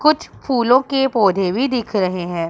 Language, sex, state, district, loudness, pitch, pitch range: Hindi, female, Punjab, Pathankot, -18 LUFS, 235 Hz, 185-270 Hz